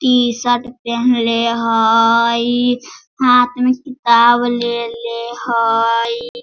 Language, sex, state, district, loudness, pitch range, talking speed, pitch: Hindi, female, Bihar, Sitamarhi, -15 LUFS, 230-245 Hz, 75 wpm, 235 Hz